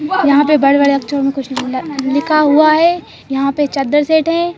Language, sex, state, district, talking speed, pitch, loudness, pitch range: Hindi, female, Madhya Pradesh, Bhopal, 210 wpm, 290 Hz, -13 LUFS, 275-310 Hz